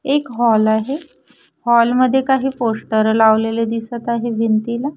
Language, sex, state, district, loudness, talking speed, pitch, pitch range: Marathi, female, Maharashtra, Washim, -16 LUFS, 145 wpm, 235 Hz, 225-260 Hz